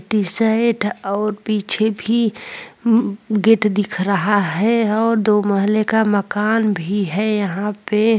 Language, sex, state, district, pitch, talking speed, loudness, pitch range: Hindi, female, Uttar Pradesh, Jalaun, 210 Hz, 130 wpm, -18 LUFS, 205-220 Hz